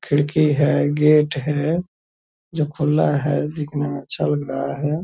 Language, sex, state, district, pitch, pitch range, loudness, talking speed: Hindi, male, Bihar, Purnia, 145 Hz, 140-150 Hz, -20 LUFS, 155 wpm